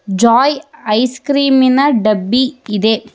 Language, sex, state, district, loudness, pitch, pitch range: Kannada, female, Karnataka, Bangalore, -13 LUFS, 250 Hz, 215-275 Hz